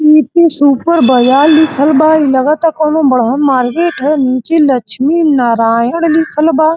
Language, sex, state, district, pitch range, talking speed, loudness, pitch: Bhojpuri, male, Uttar Pradesh, Gorakhpur, 260-315 Hz, 135 wpm, -10 LUFS, 295 Hz